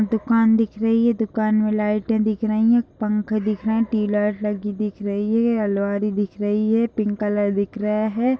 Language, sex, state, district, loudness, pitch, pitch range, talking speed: Hindi, female, Chhattisgarh, Kabirdham, -21 LUFS, 215 Hz, 210-225 Hz, 200 wpm